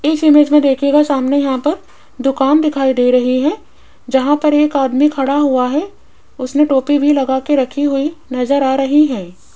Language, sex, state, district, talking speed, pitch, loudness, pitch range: Hindi, female, Rajasthan, Jaipur, 190 wpm, 280 Hz, -14 LUFS, 265-295 Hz